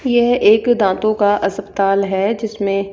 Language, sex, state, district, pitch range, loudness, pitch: Hindi, female, Rajasthan, Jaipur, 195-220 Hz, -16 LUFS, 205 Hz